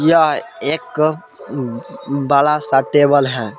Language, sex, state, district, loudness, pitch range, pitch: Hindi, male, Jharkhand, Palamu, -15 LUFS, 135-150 Hz, 145 Hz